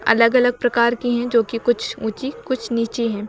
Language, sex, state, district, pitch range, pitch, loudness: Hindi, female, Uttar Pradesh, Lucknow, 230-245 Hz, 235 Hz, -19 LUFS